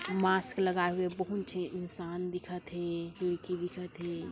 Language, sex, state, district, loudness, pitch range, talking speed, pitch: Chhattisgarhi, female, Chhattisgarh, Kabirdham, -34 LUFS, 175-185 Hz, 155 wpm, 180 Hz